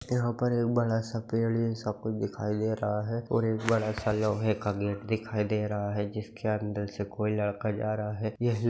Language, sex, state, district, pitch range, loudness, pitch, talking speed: Hindi, male, Bihar, Gaya, 105-115 Hz, -30 LUFS, 110 Hz, 220 wpm